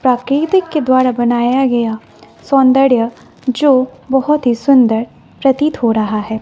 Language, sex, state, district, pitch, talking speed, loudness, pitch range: Hindi, female, Bihar, West Champaran, 255 Hz, 130 wpm, -13 LUFS, 240-275 Hz